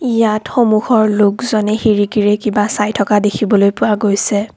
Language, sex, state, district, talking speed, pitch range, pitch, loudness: Assamese, female, Assam, Kamrup Metropolitan, 130 wpm, 205-215 Hz, 210 Hz, -14 LUFS